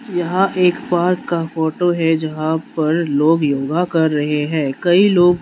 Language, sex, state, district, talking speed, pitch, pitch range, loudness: Hindi, male, Manipur, Imphal West, 175 wpm, 165 Hz, 155-175 Hz, -17 LUFS